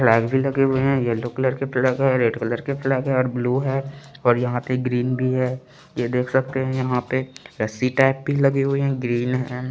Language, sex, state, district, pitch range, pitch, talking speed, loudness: Hindi, male, Chandigarh, Chandigarh, 125-135 Hz, 130 Hz, 220 wpm, -22 LUFS